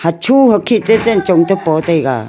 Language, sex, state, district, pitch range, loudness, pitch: Wancho, female, Arunachal Pradesh, Longding, 165-225 Hz, -12 LUFS, 185 Hz